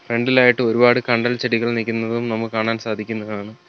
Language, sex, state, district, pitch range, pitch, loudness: Malayalam, male, Kerala, Kollam, 115-120 Hz, 115 Hz, -19 LUFS